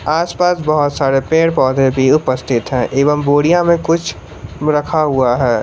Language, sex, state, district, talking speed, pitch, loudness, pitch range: Hindi, male, Jharkhand, Palamu, 170 wpm, 145 Hz, -14 LUFS, 130-160 Hz